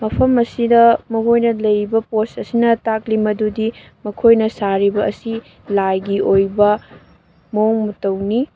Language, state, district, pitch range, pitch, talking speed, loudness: Manipuri, Manipur, Imphal West, 205-230 Hz, 220 Hz, 105 wpm, -16 LUFS